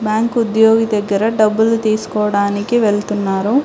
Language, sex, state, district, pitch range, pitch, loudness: Telugu, female, Telangana, Hyderabad, 205-225 Hz, 215 Hz, -15 LUFS